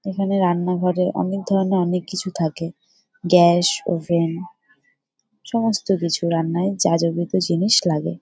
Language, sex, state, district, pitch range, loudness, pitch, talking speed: Bengali, female, West Bengal, Jalpaiguri, 170-195 Hz, -20 LUFS, 180 Hz, 130 wpm